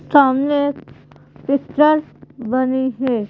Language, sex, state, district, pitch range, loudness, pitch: Hindi, female, Madhya Pradesh, Bhopal, 260-285 Hz, -17 LUFS, 270 Hz